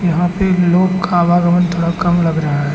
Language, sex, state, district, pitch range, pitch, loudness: Hindi, male, Arunachal Pradesh, Lower Dibang Valley, 170-180 Hz, 175 Hz, -14 LUFS